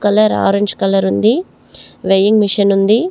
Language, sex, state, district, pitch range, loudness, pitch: Telugu, female, Andhra Pradesh, Chittoor, 195-215 Hz, -13 LUFS, 205 Hz